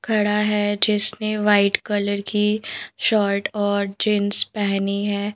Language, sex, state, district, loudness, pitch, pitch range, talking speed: Hindi, female, Madhya Pradesh, Bhopal, -19 LUFS, 205 Hz, 200-210 Hz, 125 wpm